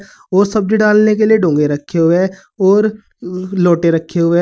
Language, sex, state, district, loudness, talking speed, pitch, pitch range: Hindi, male, Uttar Pradesh, Saharanpur, -13 LUFS, 190 wpm, 190 Hz, 170-210 Hz